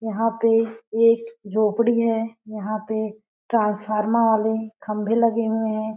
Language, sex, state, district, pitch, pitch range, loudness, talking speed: Hindi, female, Chhattisgarh, Balrampur, 220 Hz, 215-230 Hz, -22 LUFS, 130 wpm